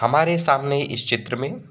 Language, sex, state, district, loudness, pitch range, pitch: Hindi, male, Uttar Pradesh, Varanasi, -21 LUFS, 120-145 Hz, 135 Hz